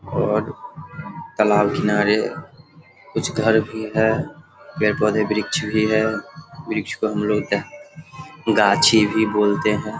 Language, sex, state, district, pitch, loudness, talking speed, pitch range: Hindi, male, Bihar, Sitamarhi, 110 Hz, -20 LUFS, 130 wpm, 105-145 Hz